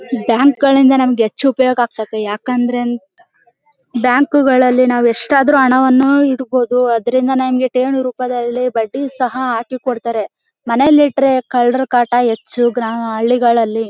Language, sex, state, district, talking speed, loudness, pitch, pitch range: Kannada, female, Karnataka, Bellary, 110 wpm, -14 LUFS, 250 Hz, 235-265 Hz